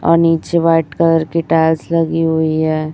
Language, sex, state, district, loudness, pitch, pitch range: Hindi, female, Chhattisgarh, Raipur, -14 LUFS, 165 Hz, 160-165 Hz